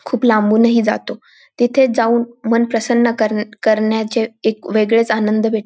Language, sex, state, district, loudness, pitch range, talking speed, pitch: Marathi, female, Maharashtra, Dhule, -16 LUFS, 215-235 Hz, 150 wpm, 225 Hz